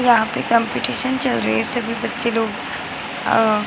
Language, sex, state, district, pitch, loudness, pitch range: Hindi, female, Bihar, Muzaffarpur, 230 Hz, -19 LUFS, 220-240 Hz